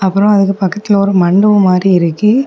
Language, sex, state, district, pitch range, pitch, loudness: Tamil, female, Tamil Nadu, Kanyakumari, 190-205 Hz, 195 Hz, -11 LUFS